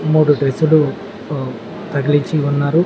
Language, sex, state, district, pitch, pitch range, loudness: Telugu, male, Telangana, Mahabubabad, 145 Hz, 140-155 Hz, -16 LUFS